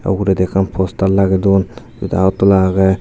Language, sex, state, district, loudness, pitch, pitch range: Chakma, male, Tripura, Dhalai, -14 LUFS, 95 Hz, 95-100 Hz